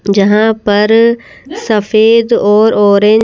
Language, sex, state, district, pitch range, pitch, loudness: Hindi, female, Madhya Pradesh, Bhopal, 205-225 Hz, 215 Hz, -9 LUFS